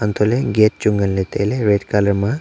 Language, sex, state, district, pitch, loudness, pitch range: Wancho, male, Arunachal Pradesh, Longding, 105 Hz, -17 LUFS, 100-110 Hz